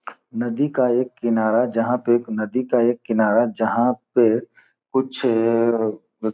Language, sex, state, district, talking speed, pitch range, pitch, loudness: Hindi, male, Bihar, Gopalganj, 150 wpm, 115-125 Hz, 120 Hz, -20 LUFS